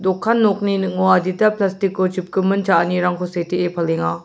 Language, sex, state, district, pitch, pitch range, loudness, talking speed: Garo, male, Meghalaya, South Garo Hills, 185 Hz, 180-195 Hz, -18 LUFS, 140 wpm